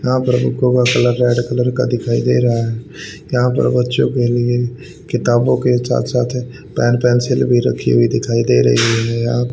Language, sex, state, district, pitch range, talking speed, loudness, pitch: Hindi, male, Haryana, Rohtak, 120-125 Hz, 190 wpm, -15 LUFS, 120 Hz